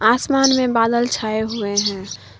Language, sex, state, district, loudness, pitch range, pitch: Hindi, female, Jharkhand, Garhwa, -18 LUFS, 205-240 Hz, 225 Hz